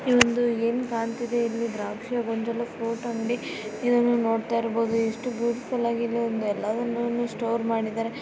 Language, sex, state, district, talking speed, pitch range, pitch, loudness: Kannada, female, Karnataka, Shimoga, 125 wpm, 230-240 Hz, 235 Hz, -26 LUFS